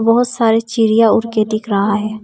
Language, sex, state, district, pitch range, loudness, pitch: Hindi, female, Arunachal Pradesh, Papum Pare, 215-230 Hz, -14 LUFS, 225 Hz